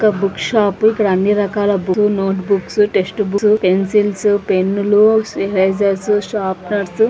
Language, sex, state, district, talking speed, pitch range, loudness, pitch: Telugu, female, Andhra Pradesh, Anantapur, 145 wpm, 195-210 Hz, -15 LUFS, 205 Hz